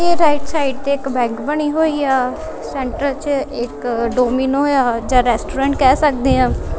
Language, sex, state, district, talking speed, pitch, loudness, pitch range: Punjabi, female, Punjab, Kapurthala, 160 wpm, 270 Hz, -17 LUFS, 250-290 Hz